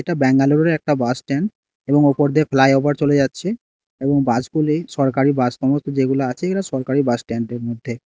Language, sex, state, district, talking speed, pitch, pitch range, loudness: Bengali, male, Karnataka, Bangalore, 165 wpm, 140 Hz, 130-150 Hz, -18 LUFS